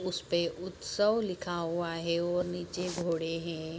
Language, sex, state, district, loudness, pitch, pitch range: Hindi, female, Bihar, Bhagalpur, -32 LUFS, 175 Hz, 165-180 Hz